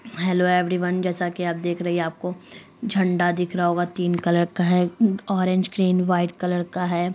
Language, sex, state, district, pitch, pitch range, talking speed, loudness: Hindi, female, Bihar, Sitamarhi, 180 Hz, 175-185 Hz, 225 wpm, -22 LUFS